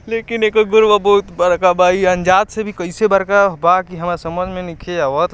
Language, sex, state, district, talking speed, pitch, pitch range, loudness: Hindi, male, Bihar, East Champaran, 215 wpm, 185 Hz, 175-210 Hz, -15 LUFS